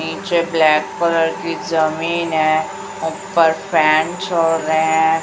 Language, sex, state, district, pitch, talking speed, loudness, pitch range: Hindi, female, Chhattisgarh, Raipur, 160 Hz, 125 wpm, -17 LUFS, 155-170 Hz